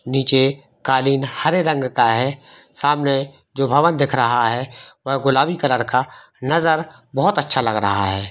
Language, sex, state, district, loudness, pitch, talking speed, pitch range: Hindi, male, Jharkhand, Jamtara, -18 LUFS, 135 Hz, 160 wpm, 130-140 Hz